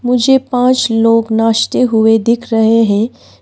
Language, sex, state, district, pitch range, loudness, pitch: Hindi, female, Arunachal Pradesh, Papum Pare, 225-250 Hz, -12 LUFS, 230 Hz